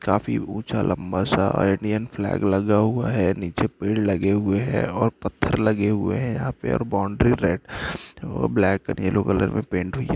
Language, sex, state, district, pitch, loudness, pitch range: Hindi, male, Andhra Pradesh, Anantapur, 100 Hz, -23 LUFS, 95-110 Hz